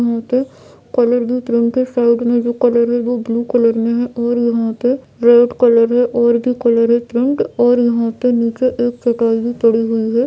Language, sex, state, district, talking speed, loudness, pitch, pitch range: Hindi, female, Bihar, Jamui, 190 wpm, -15 LUFS, 240 Hz, 235-245 Hz